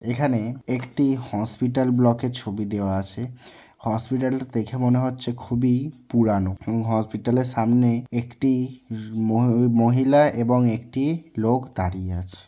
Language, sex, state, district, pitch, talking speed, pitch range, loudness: Bengali, male, West Bengal, North 24 Parganas, 120 Hz, 120 wpm, 110-130 Hz, -23 LUFS